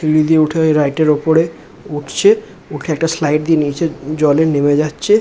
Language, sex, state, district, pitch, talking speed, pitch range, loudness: Bengali, male, West Bengal, Kolkata, 155 Hz, 175 wpm, 150-160 Hz, -14 LUFS